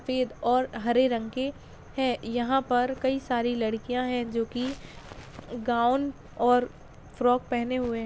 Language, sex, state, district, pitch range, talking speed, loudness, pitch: Hindi, female, Bihar, Kishanganj, 240-255 Hz, 140 wpm, -27 LUFS, 245 Hz